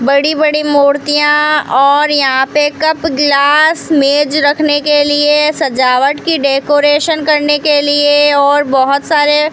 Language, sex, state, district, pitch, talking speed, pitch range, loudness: Hindi, female, Rajasthan, Bikaner, 295 Hz, 140 wpm, 280-300 Hz, -10 LUFS